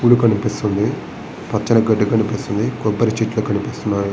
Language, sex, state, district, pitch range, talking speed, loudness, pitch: Telugu, male, Andhra Pradesh, Srikakulam, 105-115 Hz, 115 wpm, -18 LUFS, 105 Hz